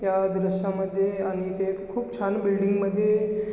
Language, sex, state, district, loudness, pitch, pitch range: Marathi, male, Maharashtra, Chandrapur, -26 LUFS, 195 Hz, 190-200 Hz